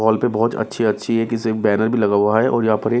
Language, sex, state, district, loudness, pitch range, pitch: Hindi, male, Bihar, Patna, -18 LUFS, 110-115 Hz, 110 Hz